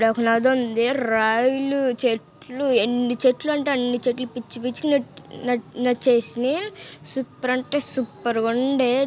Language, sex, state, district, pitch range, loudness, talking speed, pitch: Telugu, female, Andhra Pradesh, Guntur, 235-265 Hz, -22 LUFS, 130 wpm, 250 Hz